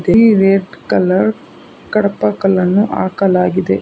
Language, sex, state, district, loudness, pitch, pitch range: Kannada, female, Karnataka, Bangalore, -13 LUFS, 195 Hz, 180-200 Hz